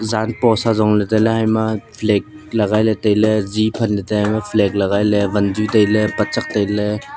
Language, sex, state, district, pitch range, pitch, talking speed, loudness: Wancho, male, Arunachal Pradesh, Longding, 105-110 Hz, 105 Hz, 185 wpm, -17 LUFS